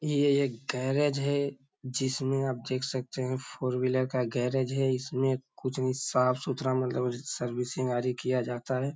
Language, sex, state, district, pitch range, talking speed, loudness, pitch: Hindi, male, Uttar Pradesh, Hamirpur, 125-135 Hz, 165 wpm, -30 LUFS, 130 Hz